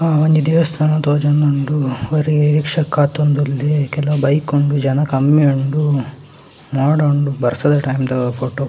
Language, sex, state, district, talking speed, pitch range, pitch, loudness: Tulu, male, Karnataka, Dakshina Kannada, 130 wpm, 140-150 Hz, 145 Hz, -16 LUFS